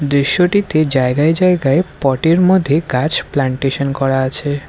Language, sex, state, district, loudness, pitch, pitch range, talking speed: Bengali, male, Assam, Kamrup Metropolitan, -15 LUFS, 145 Hz, 135-170 Hz, 130 wpm